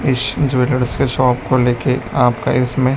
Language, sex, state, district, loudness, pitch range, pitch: Hindi, male, Chhattisgarh, Raipur, -16 LUFS, 125-130 Hz, 130 Hz